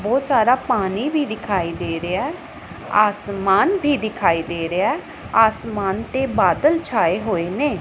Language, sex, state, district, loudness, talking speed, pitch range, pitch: Punjabi, female, Punjab, Pathankot, -20 LUFS, 145 wpm, 190-280 Hz, 220 Hz